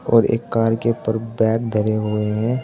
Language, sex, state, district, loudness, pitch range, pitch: Hindi, male, Uttar Pradesh, Saharanpur, -20 LUFS, 110-115 Hz, 115 Hz